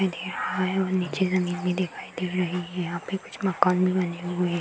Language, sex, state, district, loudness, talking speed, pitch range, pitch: Hindi, female, Uttar Pradesh, Hamirpur, -26 LUFS, 210 wpm, 180-185 Hz, 180 Hz